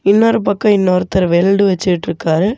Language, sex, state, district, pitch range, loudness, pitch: Tamil, male, Tamil Nadu, Namakkal, 180-200 Hz, -14 LUFS, 195 Hz